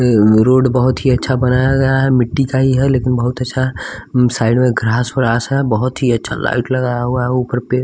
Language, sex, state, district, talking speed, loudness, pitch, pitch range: Hindi, male, Bihar, West Champaran, 230 wpm, -14 LUFS, 125 Hz, 120-130 Hz